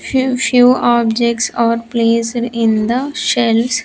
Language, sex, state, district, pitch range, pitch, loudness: English, female, Andhra Pradesh, Sri Satya Sai, 230-250 Hz, 235 Hz, -14 LUFS